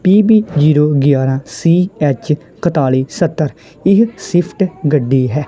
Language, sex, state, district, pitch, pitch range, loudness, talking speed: Punjabi, male, Punjab, Kapurthala, 155 Hz, 140-185 Hz, -14 LUFS, 110 wpm